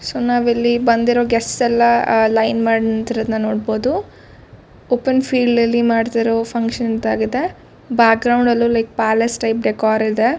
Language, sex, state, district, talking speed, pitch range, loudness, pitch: Kannada, female, Karnataka, Shimoga, 140 wpm, 225-240 Hz, -16 LUFS, 230 Hz